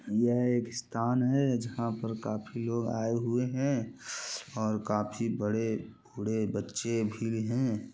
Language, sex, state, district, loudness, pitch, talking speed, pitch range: Hindi, male, Bihar, Gopalganj, -32 LUFS, 115 Hz, 135 wpm, 110-120 Hz